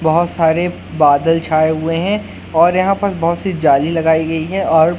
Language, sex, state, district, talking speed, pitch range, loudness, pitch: Hindi, male, Madhya Pradesh, Katni, 195 wpm, 160-175 Hz, -15 LUFS, 165 Hz